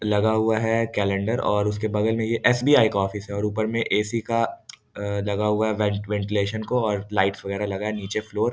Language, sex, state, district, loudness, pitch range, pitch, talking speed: Hindi, male, Bihar, East Champaran, -23 LUFS, 100-110 Hz, 105 Hz, 210 wpm